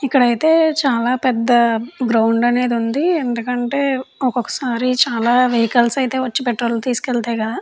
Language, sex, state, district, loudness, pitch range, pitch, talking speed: Telugu, female, Andhra Pradesh, Chittoor, -17 LUFS, 235-260 Hz, 245 Hz, 110 wpm